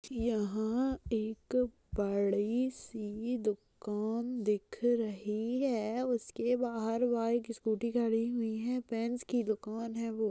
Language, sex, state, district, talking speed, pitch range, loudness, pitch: Hindi, female, Uttar Pradesh, Budaun, 120 wpm, 215-240 Hz, -34 LUFS, 230 Hz